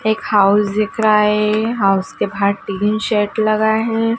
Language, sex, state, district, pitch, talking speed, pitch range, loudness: Hindi, female, Madhya Pradesh, Dhar, 210 Hz, 170 wpm, 200-220 Hz, -16 LUFS